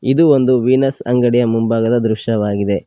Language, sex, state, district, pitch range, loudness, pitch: Kannada, male, Karnataka, Koppal, 115-130 Hz, -14 LUFS, 120 Hz